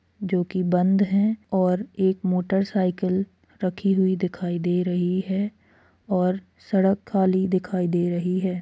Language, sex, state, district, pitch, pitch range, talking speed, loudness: Hindi, female, Chhattisgarh, Kabirdham, 185 Hz, 180-195 Hz, 165 wpm, -23 LUFS